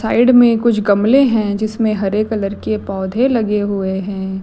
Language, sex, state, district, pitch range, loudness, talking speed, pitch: Hindi, female, Chhattisgarh, Raipur, 195-230 Hz, -15 LUFS, 175 wpm, 215 Hz